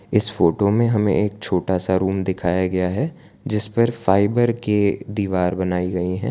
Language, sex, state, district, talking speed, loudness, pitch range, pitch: Hindi, male, Gujarat, Valsad, 170 wpm, -20 LUFS, 90-105 Hz, 100 Hz